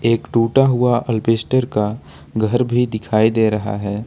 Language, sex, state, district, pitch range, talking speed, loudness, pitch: Hindi, male, Jharkhand, Ranchi, 110-125 Hz, 160 wpm, -17 LUFS, 115 Hz